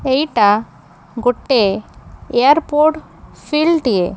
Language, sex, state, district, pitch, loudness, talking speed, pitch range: Odia, female, Odisha, Khordha, 250 Hz, -15 LUFS, 70 wpm, 205-300 Hz